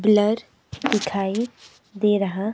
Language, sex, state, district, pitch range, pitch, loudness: Hindi, female, Himachal Pradesh, Shimla, 200-215 Hz, 210 Hz, -23 LUFS